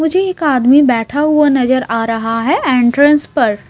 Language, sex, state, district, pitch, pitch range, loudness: Hindi, female, Maharashtra, Mumbai Suburban, 265 Hz, 235-295 Hz, -12 LUFS